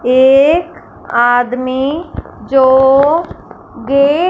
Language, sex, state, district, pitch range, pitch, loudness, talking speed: Hindi, female, Punjab, Fazilka, 255-305 Hz, 270 Hz, -11 LUFS, 70 wpm